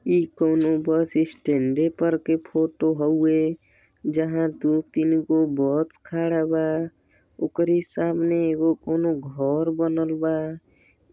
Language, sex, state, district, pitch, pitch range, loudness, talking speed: Bhojpuri, male, Uttar Pradesh, Deoria, 160 Hz, 155-165 Hz, -23 LUFS, 120 wpm